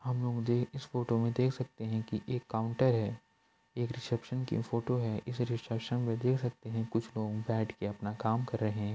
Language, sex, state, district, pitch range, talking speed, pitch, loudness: Hindi, male, Uttar Pradesh, Budaun, 110-125 Hz, 200 wpm, 115 Hz, -34 LUFS